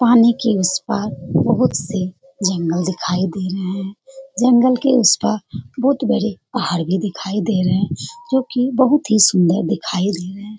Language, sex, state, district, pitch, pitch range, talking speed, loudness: Hindi, female, Bihar, Jamui, 200 Hz, 185-245 Hz, 180 wpm, -17 LUFS